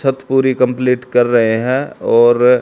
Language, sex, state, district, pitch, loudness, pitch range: Hindi, male, Haryana, Charkhi Dadri, 125 Hz, -14 LUFS, 120-130 Hz